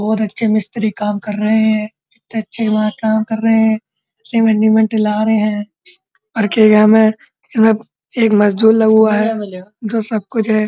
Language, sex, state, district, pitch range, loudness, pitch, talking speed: Hindi, male, Uttar Pradesh, Muzaffarnagar, 215-225 Hz, -14 LUFS, 220 Hz, 165 wpm